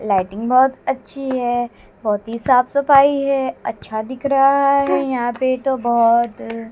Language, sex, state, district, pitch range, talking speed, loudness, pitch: Hindi, female, Haryana, Jhajjar, 235-275 Hz, 150 wpm, -17 LUFS, 255 Hz